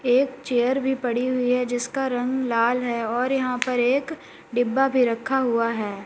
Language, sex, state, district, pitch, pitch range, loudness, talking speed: Hindi, female, Uttar Pradesh, Lalitpur, 250 Hz, 240-265 Hz, -23 LUFS, 190 wpm